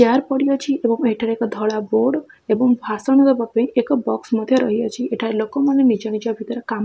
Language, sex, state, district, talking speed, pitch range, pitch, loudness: Odia, female, Odisha, Khordha, 185 wpm, 220-260 Hz, 235 Hz, -19 LUFS